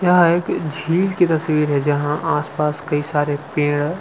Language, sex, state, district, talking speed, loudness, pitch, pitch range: Hindi, male, Chhattisgarh, Sukma, 165 wpm, -19 LUFS, 150 Hz, 145-170 Hz